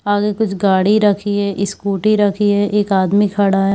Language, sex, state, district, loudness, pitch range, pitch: Hindi, female, Chhattisgarh, Bilaspur, -15 LUFS, 195-205 Hz, 205 Hz